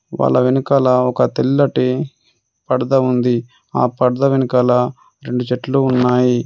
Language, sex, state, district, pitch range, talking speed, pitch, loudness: Telugu, male, Telangana, Adilabad, 125-130 Hz, 110 wpm, 125 Hz, -16 LUFS